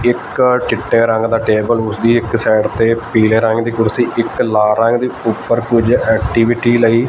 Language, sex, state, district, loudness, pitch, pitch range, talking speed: Punjabi, male, Punjab, Fazilka, -14 LUFS, 115 Hz, 110-120 Hz, 175 wpm